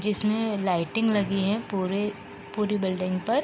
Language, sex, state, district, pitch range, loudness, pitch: Hindi, female, Uttar Pradesh, Gorakhpur, 190-215 Hz, -26 LUFS, 205 Hz